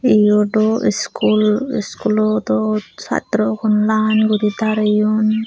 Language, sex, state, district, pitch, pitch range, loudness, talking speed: Chakma, female, Tripura, Unakoti, 215 Hz, 205-215 Hz, -16 LUFS, 100 wpm